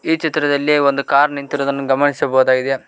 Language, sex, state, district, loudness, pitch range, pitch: Kannada, male, Karnataka, Koppal, -16 LUFS, 135-145 Hz, 140 Hz